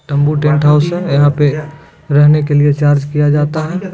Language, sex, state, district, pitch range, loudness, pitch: Hindi, male, Bihar, Begusarai, 145-155 Hz, -12 LUFS, 150 Hz